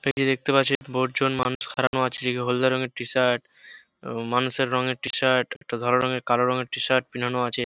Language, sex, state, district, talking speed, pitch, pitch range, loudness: Bengali, male, West Bengal, Jhargram, 195 wpm, 130 Hz, 125-130 Hz, -24 LUFS